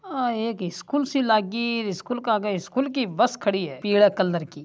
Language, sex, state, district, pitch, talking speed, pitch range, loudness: Marwari, male, Rajasthan, Nagaur, 220 Hz, 230 wpm, 190-245 Hz, -24 LUFS